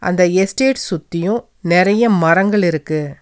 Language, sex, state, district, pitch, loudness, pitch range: Tamil, female, Tamil Nadu, Nilgiris, 180 Hz, -15 LUFS, 170-210 Hz